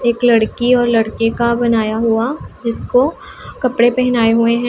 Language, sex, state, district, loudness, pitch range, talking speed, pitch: Hindi, female, Punjab, Pathankot, -15 LUFS, 230-245 Hz, 155 wpm, 235 Hz